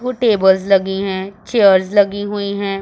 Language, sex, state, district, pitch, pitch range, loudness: Hindi, female, Punjab, Pathankot, 200 Hz, 190-205 Hz, -15 LUFS